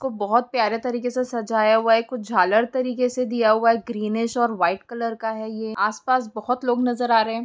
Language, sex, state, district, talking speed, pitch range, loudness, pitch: Hindi, female, Bihar, Jamui, 215 wpm, 220-245 Hz, -22 LUFS, 230 Hz